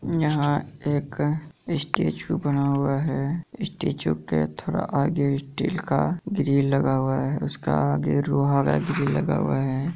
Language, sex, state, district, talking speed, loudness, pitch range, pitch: Hindi, male, Bihar, Kishanganj, 150 wpm, -24 LUFS, 130-150 Hz, 140 Hz